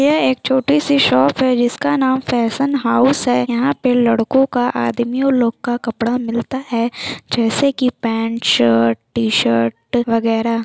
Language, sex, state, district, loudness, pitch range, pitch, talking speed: Hindi, female, Bihar, Lakhisarai, -16 LUFS, 230-265 Hz, 240 Hz, 160 wpm